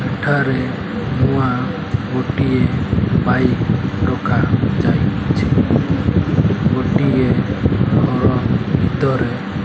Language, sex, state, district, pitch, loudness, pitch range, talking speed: Odia, male, Odisha, Malkangiri, 130 Hz, -17 LUFS, 105-130 Hz, 55 wpm